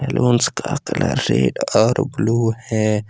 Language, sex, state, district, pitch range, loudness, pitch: Hindi, male, Jharkhand, Deoghar, 110-120 Hz, -18 LUFS, 115 Hz